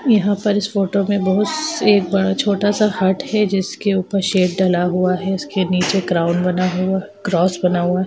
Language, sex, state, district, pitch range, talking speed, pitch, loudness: Hindi, female, Bihar, Gaya, 185-205 Hz, 200 wpm, 190 Hz, -17 LUFS